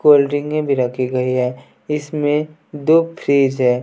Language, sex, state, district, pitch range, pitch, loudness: Hindi, male, Bihar, West Champaran, 125-150 Hz, 145 Hz, -18 LUFS